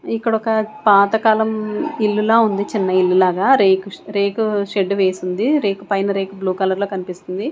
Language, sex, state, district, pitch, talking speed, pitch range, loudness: Telugu, female, Andhra Pradesh, Sri Satya Sai, 200 Hz, 175 wpm, 190-220 Hz, -17 LUFS